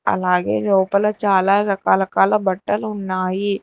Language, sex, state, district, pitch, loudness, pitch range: Telugu, female, Telangana, Hyderabad, 195 Hz, -18 LUFS, 185-205 Hz